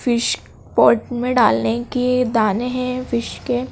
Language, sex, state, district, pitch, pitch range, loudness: Hindi, female, Madhya Pradesh, Dhar, 245 Hz, 230-250 Hz, -19 LUFS